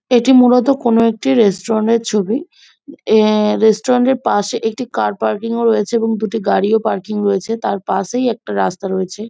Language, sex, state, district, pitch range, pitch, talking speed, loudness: Bengali, female, West Bengal, Jhargram, 210-245 Hz, 225 Hz, 155 wpm, -15 LUFS